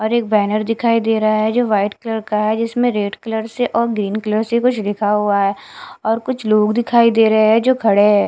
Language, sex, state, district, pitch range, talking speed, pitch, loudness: Hindi, female, Bihar, Katihar, 210-230 Hz, 245 wpm, 220 Hz, -16 LUFS